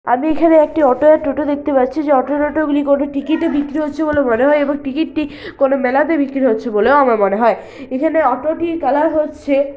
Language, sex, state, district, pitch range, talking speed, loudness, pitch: Bengali, female, West Bengal, Malda, 270-310 Hz, 210 wpm, -15 LUFS, 290 Hz